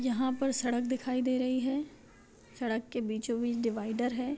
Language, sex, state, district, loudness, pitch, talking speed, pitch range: Hindi, female, Bihar, Jahanabad, -32 LUFS, 250 Hz, 165 wpm, 235-255 Hz